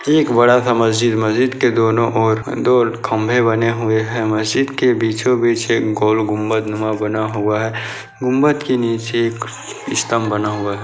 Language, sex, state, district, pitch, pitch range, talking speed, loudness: Hindi, male, Bihar, Kishanganj, 115 Hz, 110-120 Hz, 165 wpm, -16 LUFS